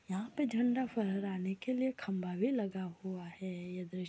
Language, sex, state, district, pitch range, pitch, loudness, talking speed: Hindi, female, Bihar, Sitamarhi, 185-240 Hz, 195 Hz, -37 LUFS, 205 wpm